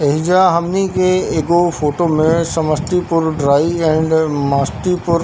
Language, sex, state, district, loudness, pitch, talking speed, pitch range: Hindi, male, Bihar, Darbhanga, -15 LUFS, 165 Hz, 125 wpm, 155-175 Hz